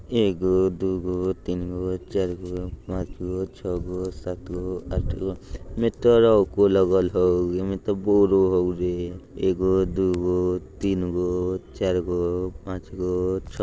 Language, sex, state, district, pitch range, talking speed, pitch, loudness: Bajjika, male, Bihar, Vaishali, 90-95 Hz, 100 wpm, 90 Hz, -24 LUFS